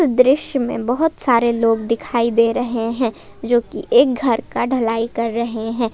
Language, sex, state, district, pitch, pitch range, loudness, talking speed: Hindi, female, Jharkhand, Palamu, 235 Hz, 230-260 Hz, -18 LUFS, 180 wpm